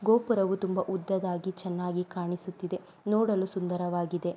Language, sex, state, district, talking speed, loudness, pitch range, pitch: Kannada, female, Karnataka, Mysore, 95 wpm, -30 LUFS, 180-190 Hz, 185 Hz